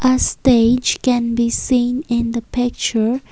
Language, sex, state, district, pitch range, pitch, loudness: English, female, Assam, Kamrup Metropolitan, 235-255 Hz, 245 Hz, -17 LUFS